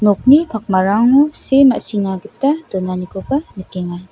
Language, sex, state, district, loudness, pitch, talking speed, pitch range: Garo, female, Meghalaya, South Garo Hills, -15 LUFS, 205 Hz, 100 wpm, 190-275 Hz